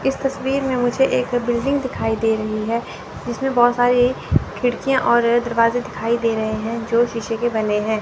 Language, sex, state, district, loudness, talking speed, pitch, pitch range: Hindi, female, Chandigarh, Chandigarh, -19 LUFS, 185 wpm, 240 Hz, 225-250 Hz